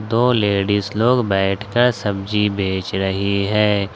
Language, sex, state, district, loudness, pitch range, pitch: Hindi, male, Jharkhand, Ranchi, -18 LUFS, 100-110 Hz, 100 Hz